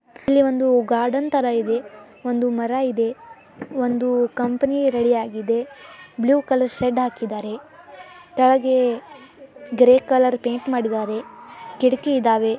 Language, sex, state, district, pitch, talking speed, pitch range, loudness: Kannada, male, Karnataka, Dharwad, 250 Hz, 115 wpm, 235-270 Hz, -20 LUFS